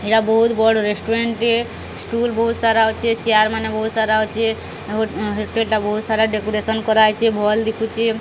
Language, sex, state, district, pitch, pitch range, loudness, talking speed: Odia, female, Odisha, Sambalpur, 220 Hz, 215-225 Hz, -18 LUFS, 160 wpm